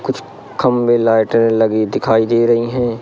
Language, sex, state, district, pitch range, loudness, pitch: Hindi, male, Madhya Pradesh, Katni, 110-120 Hz, -14 LUFS, 115 Hz